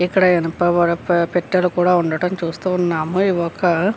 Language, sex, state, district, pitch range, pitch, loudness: Telugu, female, Andhra Pradesh, Visakhapatnam, 170-180 Hz, 175 Hz, -18 LUFS